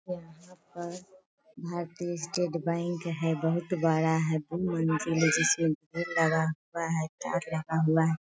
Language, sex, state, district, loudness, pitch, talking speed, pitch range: Hindi, female, Bihar, Sitamarhi, -29 LUFS, 165 Hz, 115 wpm, 160-175 Hz